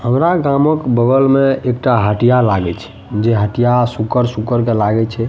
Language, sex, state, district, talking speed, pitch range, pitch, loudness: Maithili, male, Bihar, Madhepura, 170 wpm, 110-130 Hz, 120 Hz, -14 LUFS